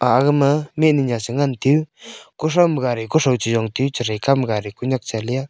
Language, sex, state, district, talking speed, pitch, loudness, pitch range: Wancho, male, Arunachal Pradesh, Longding, 240 wpm, 130 Hz, -19 LUFS, 120-145 Hz